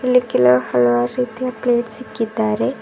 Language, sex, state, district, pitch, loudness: Kannada, female, Karnataka, Bidar, 225 Hz, -18 LUFS